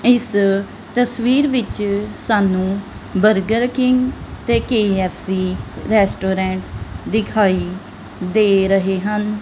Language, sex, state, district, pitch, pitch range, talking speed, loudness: Punjabi, female, Punjab, Kapurthala, 205 Hz, 190-225 Hz, 85 wpm, -18 LUFS